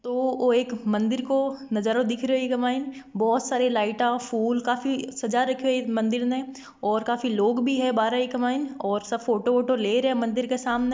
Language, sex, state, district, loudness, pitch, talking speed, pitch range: Marwari, female, Rajasthan, Nagaur, -25 LUFS, 245 Hz, 190 wpm, 235-255 Hz